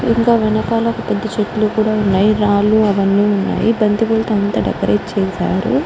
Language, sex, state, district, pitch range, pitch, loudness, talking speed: Telugu, female, Andhra Pradesh, Guntur, 205-225 Hz, 215 Hz, -15 LUFS, 145 wpm